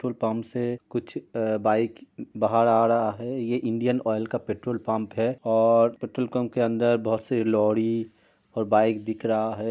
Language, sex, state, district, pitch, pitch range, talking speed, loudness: Hindi, male, Uttar Pradesh, Budaun, 115 Hz, 110-120 Hz, 180 wpm, -25 LUFS